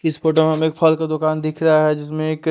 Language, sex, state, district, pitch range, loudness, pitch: Hindi, male, Delhi, New Delhi, 155-160 Hz, -17 LUFS, 155 Hz